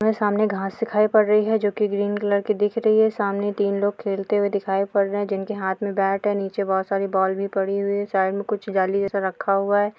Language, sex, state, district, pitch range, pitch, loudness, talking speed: Hindi, female, Uttar Pradesh, Deoria, 195-210 Hz, 200 Hz, -22 LUFS, 260 wpm